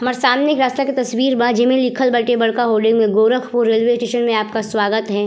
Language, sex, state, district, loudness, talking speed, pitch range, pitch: Bhojpuri, female, Uttar Pradesh, Gorakhpur, -16 LUFS, 225 wpm, 225-250 Hz, 240 Hz